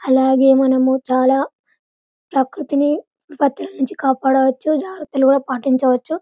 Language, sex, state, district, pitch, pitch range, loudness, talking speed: Telugu, female, Telangana, Karimnagar, 270 Hz, 265-290 Hz, -17 LUFS, 75 wpm